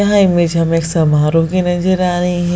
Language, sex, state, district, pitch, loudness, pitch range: Hindi, female, Bihar, Jahanabad, 175 Hz, -14 LUFS, 165-180 Hz